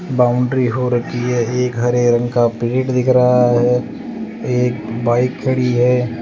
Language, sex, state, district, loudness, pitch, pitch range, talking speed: Hindi, male, Rajasthan, Jaipur, -16 LUFS, 125 Hz, 120-125 Hz, 155 wpm